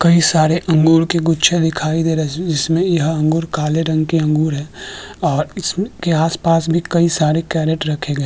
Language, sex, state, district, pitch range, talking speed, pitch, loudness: Hindi, male, Uttar Pradesh, Hamirpur, 155-170 Hz, 195 wpm, 160 Hz, -16 LUFS